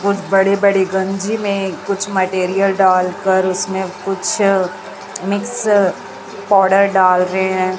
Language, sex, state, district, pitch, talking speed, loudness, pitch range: Hindi, male, Chhattisgarh, Raipur, 195 Hz, 130 wpm, -15 LUFS, 185-200 Hz